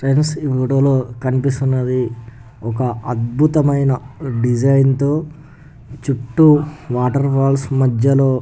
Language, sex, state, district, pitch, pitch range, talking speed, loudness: Telugu, male, Telangana, Nalgonda, 135 Hz, 125-140 Hz, 100 wpm, -16 LUFS